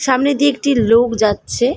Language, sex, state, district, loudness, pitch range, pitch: Bengali, female, West Bengal, Malda, -15 LUFS, 230-280 Hz, 250 Hz